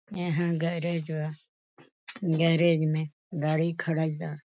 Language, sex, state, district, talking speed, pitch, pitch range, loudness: Bhojpuri, female, Uttar Pradesh, Deoria, 110 wpm, 165 Hz, 155-170 Hz, -28 LUFS